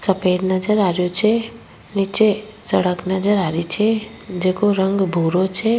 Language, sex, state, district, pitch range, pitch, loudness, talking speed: Rajasthani, female, Rajasthan, Nagaur, 185-215 Hz, 195 Hz, -19 LUFS, 155 wpm